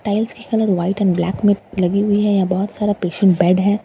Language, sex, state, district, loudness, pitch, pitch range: Hindi, female, Bihar, Katihar, -17 LUFS, 200 Hz, 185-205 Hz